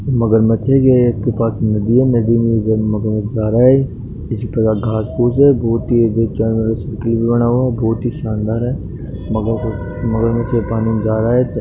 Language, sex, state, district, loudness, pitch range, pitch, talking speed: Hindi, male, Rajasthan, Nagaur, -15 LUFS, 110-120 Hz, 115 Hz, 165 wpm